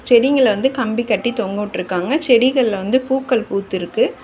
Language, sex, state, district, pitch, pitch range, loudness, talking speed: Tamil, female, Tamil Nadu, Chennai, 240 Hz, 200-260 Hz, -17 LUFS, 125 wpm